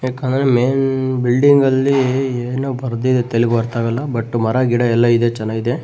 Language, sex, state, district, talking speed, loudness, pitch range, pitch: Kannada, male, Karnataka, Bellary, 135 wpm, -16 LUFS, 115-130 Hz, 125 Hz